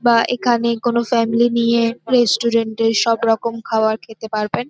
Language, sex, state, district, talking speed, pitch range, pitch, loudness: Bengali, female, West Bengal, North 24 Parganas, 155 wpm, 225-235 Hz, 230 Hz, -17 LUFS